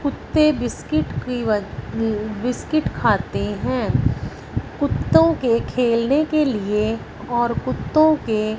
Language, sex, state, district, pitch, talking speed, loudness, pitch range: Hindi, female, Punjab, Fazilka, 240 Hz, 105 wpm, -21 LUFS, 215-295 Hz